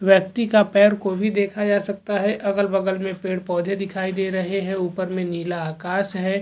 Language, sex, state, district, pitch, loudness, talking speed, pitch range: Hindi, male, Goa, North and South Goa, 195 Hz, -22 LUFS, 195 wpm, 185-200 Hz